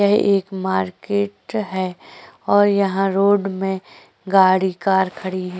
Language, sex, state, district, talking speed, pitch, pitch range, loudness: Hindi, female, Chhattisgarh, Korba, 130 wpm, 195 Hz, 185-200 Hz, -19 LUFS